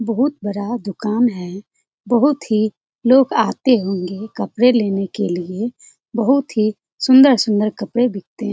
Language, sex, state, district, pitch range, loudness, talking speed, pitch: Hindi, female, Bihar, Jamui, 205-245 Hz, -17 LUFS, 135 wpm, 220 Hz